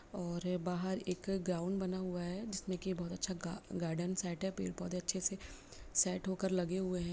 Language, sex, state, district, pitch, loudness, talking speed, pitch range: Hindi, female, Bihar, Lakhisarai, 180 Hz, -38 LUFS, 200 wpm, 175-190 Hz